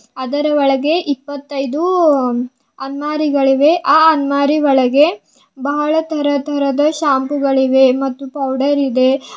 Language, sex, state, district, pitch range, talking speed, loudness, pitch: Kannada, female, Karnataka, Bidar, 270-300 Hz, 90 wpm, -15 LUFS, 280 Hz